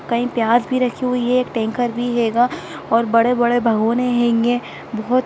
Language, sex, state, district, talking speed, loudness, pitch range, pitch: Hindi, female, Bihar, Sitamarhi, 170 wpm, -18 LUFS, 230-250 Hz, 240 Hz